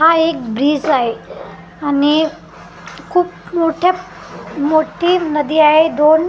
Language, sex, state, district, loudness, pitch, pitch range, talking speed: Marathi, female, Maharashtra, Gondia, -15 LUFS, 315 Hz, 295-330 Hz, 115 wpm